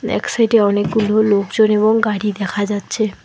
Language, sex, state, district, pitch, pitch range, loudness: Bengali, female, West Bengal, Alipurduar, 210 Hz, 205-220 Hz, -16 LUFS